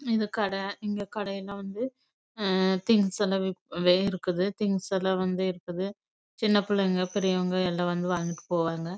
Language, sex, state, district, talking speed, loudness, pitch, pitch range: Tamil, female, Karnataka, Chamarajanagar, 80 wpm, -28 LUFS, 190 Hz, 185-205 Hz